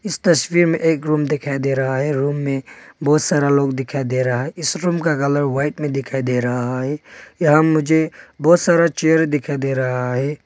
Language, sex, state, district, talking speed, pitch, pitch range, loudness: Hindi, male, Arunachal Pradesh, Papum Pare, 210 wpm, 145 Hz, 135-160 Hz, -18 LUFS